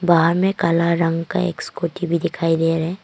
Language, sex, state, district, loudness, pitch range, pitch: Hindi, female, Arunachal Pradesh, Longding, -19 LUFS, 165-175 Hz, 170 Hz